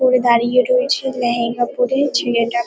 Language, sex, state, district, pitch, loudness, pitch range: Bengali, female, West Bengal, Kolkata, 245 Hz, -17 LUFS, 235-260 Hz